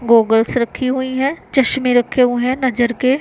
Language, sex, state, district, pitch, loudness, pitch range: Hindi, female, Punjab, Pathankot, 250 Hz, -16 LUFS, 240-260 Hz